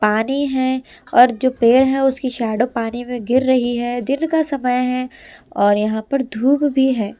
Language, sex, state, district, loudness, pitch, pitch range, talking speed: Hindi, female, Delhi, New Delhi, -17 LUFS, 250 Hz, 235-265 Hz, 190 wpm